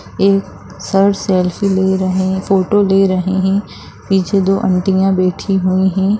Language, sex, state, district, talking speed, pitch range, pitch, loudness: Hindi, female, Bihar, Jamui, 155 wpm, 185-195 Hz, 190 Hz, -14 LUFS